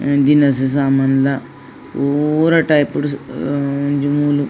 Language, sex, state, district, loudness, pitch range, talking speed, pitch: Tulu, female, Karnataka, Dakshina Kannada, -16 LUFS, 140-145 Hz, 135 wpm, 140 Hz